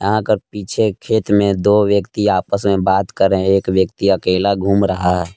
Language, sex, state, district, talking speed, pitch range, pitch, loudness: Hindi, male, Jharkhand, Palamu, 190 wpm, 95-105 Hz, 100 Hz, -16 LUFS